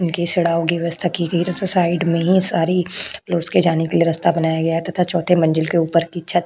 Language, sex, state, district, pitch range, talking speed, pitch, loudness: Hindi, female, Uttar Pradesh, Budaun, 165-175 Hz, 240 wpm, 170 Hz, -18 LUFS